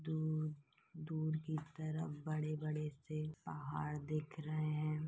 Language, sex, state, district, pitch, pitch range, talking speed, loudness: Hindi, female, Uttar Pradesh, Deoria, 155 Hz, 150-155 Hz, 130 wpm, -42 LUFS